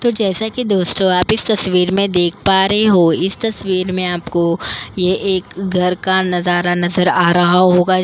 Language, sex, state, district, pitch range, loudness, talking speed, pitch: Hindi, female, Delhi, New Delhi, 180-195 Hz, -14 LUFS, 185 wpm, 185 Hz